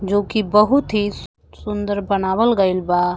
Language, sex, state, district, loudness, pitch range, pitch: Bhojpuri, female, Uttar Pradesh, Gorakhpur, -18 LUFS, 190-210 Hz, 205 Hz